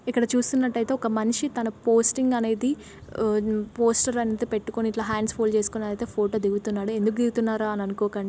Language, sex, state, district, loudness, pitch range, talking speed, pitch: Telugu, female, Telangana, Nalgonda, -25 LUFS, 215-235 Hz, 160 wpm, 225 Hz